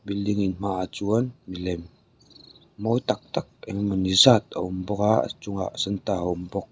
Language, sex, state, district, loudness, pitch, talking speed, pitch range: Mizo, male, Mizoram, Aizawl, -25 LUFS, 100 Hz, 205 wpm, 90-105 Hz